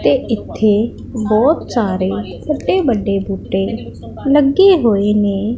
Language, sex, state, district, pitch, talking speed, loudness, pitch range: Punjabi, female, Punjab, Pathankot, 215 Hz, 105 wpm, -15 LUFS, 200-275 Hz